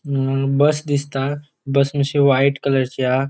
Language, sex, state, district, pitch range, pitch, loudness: Konkani, male, Goa, North and South Goa, 135-145 Hz, 140 Hz, -19 LUFS